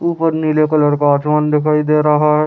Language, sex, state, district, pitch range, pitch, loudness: Hindi, male, Chhattisgarh, Raigarh, 150-155 Hz, 150 Hz, -14 LUFS